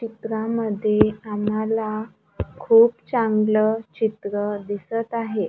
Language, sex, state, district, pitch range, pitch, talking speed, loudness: Marathi, female, Maharashtra, Gondia, 210-225 Hz, 220 Hz, 75 wpm, -22 LUFS